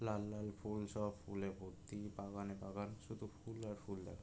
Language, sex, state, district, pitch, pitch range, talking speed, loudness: Bengali, male, West Bengal, Jalpaiguri, 105 Hz, 100-105 Hz, 185 wpm, -47 LUFS